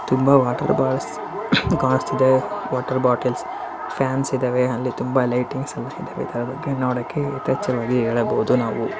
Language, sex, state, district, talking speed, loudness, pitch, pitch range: Kannada, female, Karnataka, Bijapur, 120 wpm, -21 LUFS, 130 Hz, 125-135 Hz